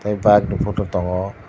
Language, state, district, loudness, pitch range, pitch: Kokborok, Tripura, Dhalai, -19 LUFS, 95-105 Hz, 105 Hz